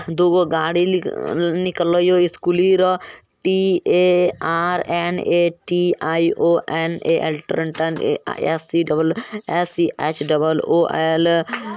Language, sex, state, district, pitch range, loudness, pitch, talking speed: Maithili, male, Bihar, Bhagalpur, 160-180 Hz, -18 LUFS, 170 Hz, 115 wpm